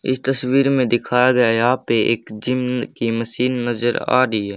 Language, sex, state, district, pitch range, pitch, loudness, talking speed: Hindi, male, Haryana, Jhajjar, 115-130 Hz, 125 Hz, -18 LUFS, 195 wpm